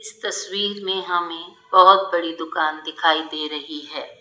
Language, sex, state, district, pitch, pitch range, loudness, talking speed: Hindi, female, Rajasthan, Jaipur, 170 Hz, 155-190 Hz, -20 LUFS, 155 wpm